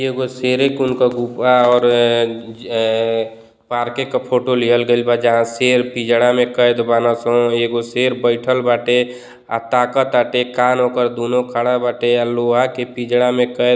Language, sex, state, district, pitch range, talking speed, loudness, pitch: Bhojpuri, male, Uttar Pradesh, Deoria, 120-125 Hz, 175 wpm, -16 LUFS, 120 Hz